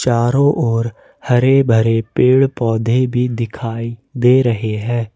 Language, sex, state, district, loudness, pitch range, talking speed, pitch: Hindi, male, Jharkhand, Ranchi, -15 LUFS, 115-130 Hz, 130 wpm, 120 Hz